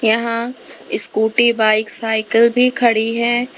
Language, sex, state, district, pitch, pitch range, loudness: Hindi, female, Uttar Pradesh, Lalitpur, 230 Hz, 220-240 Hz, -16 LUFS